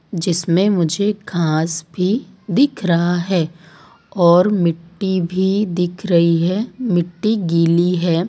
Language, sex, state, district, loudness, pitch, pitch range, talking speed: Hindi, female, Gujarat, Valsad, -17 LUFS, 175 Hz, 170-195 Hz, 115 wpm